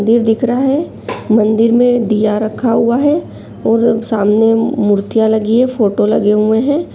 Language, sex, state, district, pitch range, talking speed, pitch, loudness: Angika, female, Bihar, Supaul, 215-245 Hz, 165 wpm, 225 Hz, -13 LUFS